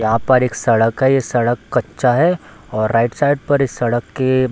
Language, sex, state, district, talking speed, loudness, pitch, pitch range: Hindi, male, Bihar, Darbhanga, 225 wpm, -16 LUFS, 125 Hz, 115-135 Hz